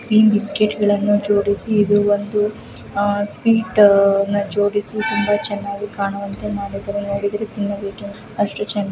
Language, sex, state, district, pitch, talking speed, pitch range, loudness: Kannada, female, Karnataka, Gulbarga, 205 Hz, 135 wpm, 200-210 Hz, -18 LUFS